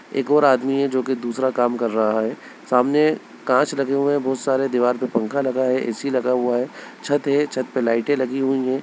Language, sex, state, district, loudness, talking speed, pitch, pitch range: Hindi, male, Bihar, Begusarai, -20 LUFS, 240 wpm, 130 Hz, 125-140 Hz